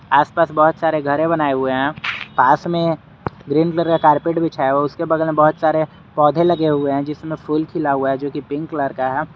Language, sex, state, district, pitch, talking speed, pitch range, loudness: Hindi, male, Jharkhand, Garhwa, 155 Hz, 225 wpm, 145-165 Hz, -18 LUFS